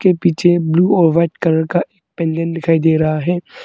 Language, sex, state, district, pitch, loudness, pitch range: Hindi, male, Arunachal Pradesh, Longding, 165 Hz, -15 LUFS, 160-175 Hz